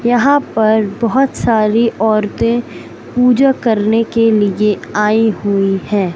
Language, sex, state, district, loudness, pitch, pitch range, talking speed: Hindi, male, Madhya Pradesh, Katni, -13 LUFS, 220 Hz, 210-235 Hz, 115 wpm